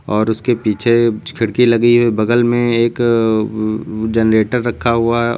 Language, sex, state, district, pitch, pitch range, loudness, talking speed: Hindi, male, Uttar Pradesh, Lucknow, 115 Hz, 110-120 Hz, -15 LUFS, 145 wpm